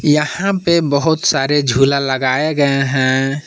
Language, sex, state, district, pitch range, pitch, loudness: Hindi, male, Jharkhand, Palamu, 135-155 Hz, 140 Hz, -15 LUFS